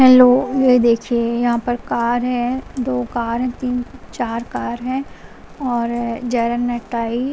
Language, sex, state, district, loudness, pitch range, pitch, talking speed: Hindi, female, Punjab, Kapurthala, -19 LUFS, 235-250 Hz, 245 Hz, 130 wpm